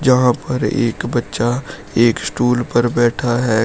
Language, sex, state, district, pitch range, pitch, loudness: Hindi, male, Uttar Pradesh, Shamli, 120-125 Hz, 120 Hz, -17 LUFS